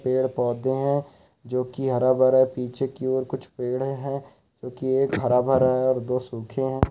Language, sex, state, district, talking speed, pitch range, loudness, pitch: Hindi, male, Chhattisgarh, Raigarh, 200 wpm, 125-130 Hz, -24 LUFS, 130 Hz